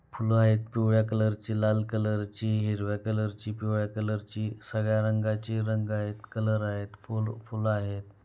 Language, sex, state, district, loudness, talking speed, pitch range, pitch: Marathi, male, Maharashtra, Pune, -29 LUFS, 140 wpm, 105-110 Hz, 110 Hz